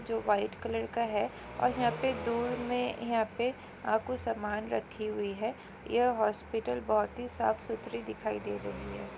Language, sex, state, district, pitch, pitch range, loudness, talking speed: Hindi, female, Chhattisgarh, Jashpur, 225 Hz, 210-240 Hz, -33 LUFS, 175 wpm